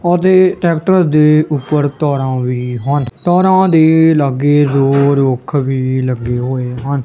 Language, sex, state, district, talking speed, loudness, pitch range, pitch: Punjabi, male, Punjab, Kapurthala, 135 wpm, -12 LUFS, 130-160 Hz, 145 Hz